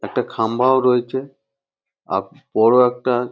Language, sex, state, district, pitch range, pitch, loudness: Bengali, male, West Bengal, North 24 Parganas, 120-130 Hz, 125 Hz, -18 LUFS